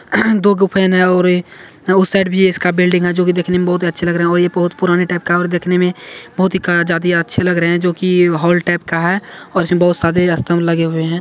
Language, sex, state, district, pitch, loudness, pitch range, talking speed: Hindi, male, Bihar, Saharsa, 180 Hz, -14 LUFS, 175-180 Hz, 295 wpm